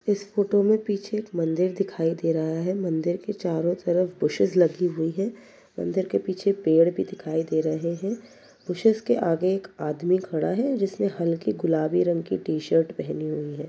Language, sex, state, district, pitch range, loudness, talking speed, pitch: Hindi, male, Uttar Pradesh, Jyotiba Phule Nagar, 165-200 Hz, -25 LUFS, 190 wpm, 180 Hz